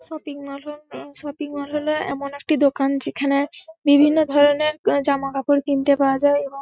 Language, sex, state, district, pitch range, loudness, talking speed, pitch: Bengali, female, West Bengal, Paschim Medinipur, 280-295 Hz, -20 LUFS, 165 wpm, 285 Hz